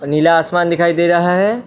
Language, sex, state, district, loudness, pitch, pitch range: Hindi, male, Assam, Kamrup Metropolitan, -13 LUFS, 170 Hz, 165-175 Hz